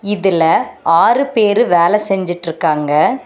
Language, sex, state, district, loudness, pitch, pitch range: Tamil, female, Tamil Nadu, Nilgiris, -13 LUFS, 185 Hz, 165-210 Hz